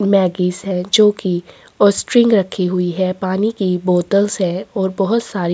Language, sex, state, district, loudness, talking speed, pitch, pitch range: Hindi, female, Chhattisgarh, Korba, -16 LUFS, 195 wpm, 190 Hz, 180-205 Hz